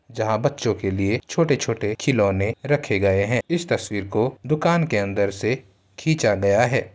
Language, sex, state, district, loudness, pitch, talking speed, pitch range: Hindi, male, Uttar Pradesh, Ghazipur, -22 LUFS, 110 Hz, 165 wpm, 100-140 Hz